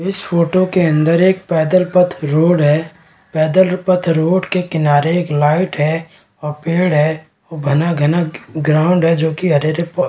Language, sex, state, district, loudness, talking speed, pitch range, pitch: Hindi, male, Bihar, Kishanganj, -15 LUFS, 155 wpm, 155-180 Hz, 165 Hz